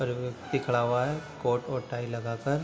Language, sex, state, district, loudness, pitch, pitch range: Hindi, male, Bihar, Sitamarhi, -30 LUFS, 125 Hz, 120-135 Hz